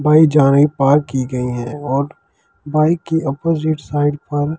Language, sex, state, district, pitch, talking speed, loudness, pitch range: Hindi, male, Delhi, New Delhi, 145 Hz, 155 wpm, -16 LUFS, 135-155 Hz